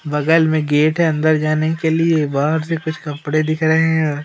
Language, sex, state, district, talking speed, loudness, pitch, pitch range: Hindi, female, Madhya Pradesh, Umaria, 210 wpm, -17 LUFS, 155 Hz, 150-160 Hz